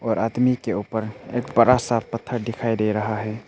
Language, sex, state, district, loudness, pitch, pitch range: Hindi, male, Arunachal Pradesh, Papum Pare, -22 LUFS, 115 Hz, 110-120 Hz